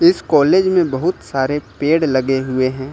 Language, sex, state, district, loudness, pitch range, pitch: Hindi, male, Uttar Pradesh, Lucknow, -16 LUFS, 130-165 Hz, 135 Hz